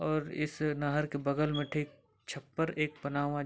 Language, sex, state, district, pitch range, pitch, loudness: Hindi, male, Jharkhand, Sahebganj, 145-150 Hz, 150 Hz, -34 LUFS